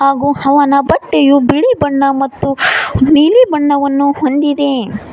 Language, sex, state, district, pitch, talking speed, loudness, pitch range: Kannada, female, Karnataka, Koppal, 280 Hz, 105 wpm, -11 LUFS, 275-290 Hz